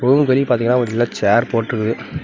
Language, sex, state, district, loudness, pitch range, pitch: Tamil, male, Tamil Nadu, Namakkal, -17 LUFS, 115-125 Hz, 120 Hz